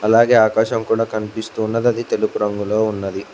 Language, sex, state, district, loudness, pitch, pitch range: Telugu, male, Telangana, Mahabubabad, -18 LUFS, 110 Hz, 105-115 Hz